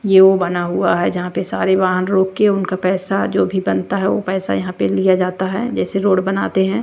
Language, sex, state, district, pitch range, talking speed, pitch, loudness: Hindi, female, Bihar, West Champaran, 185-195 Hz, 245 wpm, 190 Hz, -17 LUFS